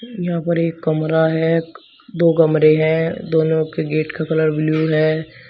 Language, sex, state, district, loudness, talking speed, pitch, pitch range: Hindi, male, Uttar Pradesh, Shamli, -17 LUFS, 165 wpm, 160 Hz, 155-165 Hz